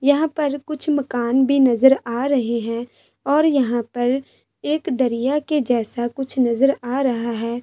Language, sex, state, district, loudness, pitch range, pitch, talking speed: Hindi, female, Bihar, Saharsa, -20 LUFS, 240-285 Hz, 265 Hz, 175 wpm